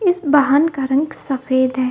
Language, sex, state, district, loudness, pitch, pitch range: Hindi, female, Bihar, Gaya, -17 LUFS, 275 Hz, 260-300 Hz